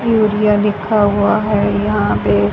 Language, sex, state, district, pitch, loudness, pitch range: Hindi, female, Haryana, Charkhi Dadri, 210 Hz, -14 LUFS, 205-215 Hz